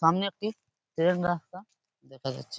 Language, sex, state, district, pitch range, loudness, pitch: Bengali, male, West Bengal, Purulia, 165-190 Hz, -30 LUFS, 175 Hz